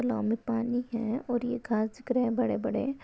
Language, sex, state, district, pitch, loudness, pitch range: Hindi, female, Chhattisgarh, Rajnandgaon, 240 Hz, -30 LUFS, 230-250 Hz